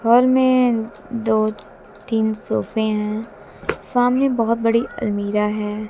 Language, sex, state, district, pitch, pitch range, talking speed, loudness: Hindi, female, Haryana, Jhajjar, 225 Hz, 215-240 Hz, 110 wpm, -20 LUFS